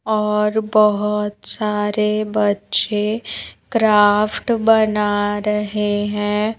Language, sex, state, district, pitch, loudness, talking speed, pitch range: Hindi, female, Madhya Pradesh, Bhopal, 210 Hz, -18 LUFS, 75 wpm, 210-215 Hz